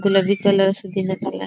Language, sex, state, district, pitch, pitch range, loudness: Marathi, female, Maharashtra, Dhule, 195 Hz, 195-200 Hz, -19 LUFS